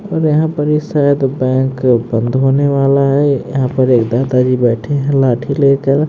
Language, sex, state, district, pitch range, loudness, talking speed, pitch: Hindi, male, Haryana, Jhajjar, 125-145 Hz, -13 LUFS, 165 wpm, 135 Hz